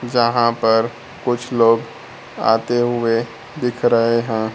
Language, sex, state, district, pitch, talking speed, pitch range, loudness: Hindi, male, Bihar, Kaimur, 115 Hz, 120 wpm, 115-120 Hz, -18 LUFS